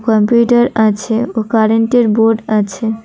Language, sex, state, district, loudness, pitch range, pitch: Bengali, female, West Bengal, Cooch Behar, -13 LUFS, 220-235 Hz, 225 Hz